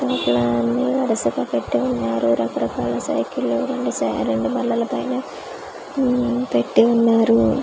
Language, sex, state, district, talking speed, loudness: Telugu, female, Andhra Pradesh, Manyam, 100 wpm, -20 LUFS